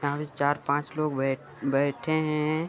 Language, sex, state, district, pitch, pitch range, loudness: Hindi, male, Chhattisgarh, Sarguja, 145 Hz, 140-155 Hz, -28 LUFS